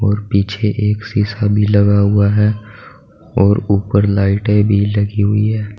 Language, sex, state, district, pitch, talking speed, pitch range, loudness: Hindi, male, Uttar Pradesh, Saharanpur, 105 Hz, 155 wpm, 100-105 Hz, -14 LUFS